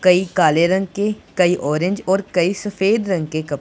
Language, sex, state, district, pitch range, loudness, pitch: Hindi, male, Punjab, Pathankot, 170-195 Hz, -18 LUFS, 185 Hz